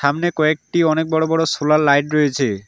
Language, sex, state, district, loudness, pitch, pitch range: Bengali, male, West Bengal, Alipurduar, -17 LUFS, 155 Hz, 145-160 Hz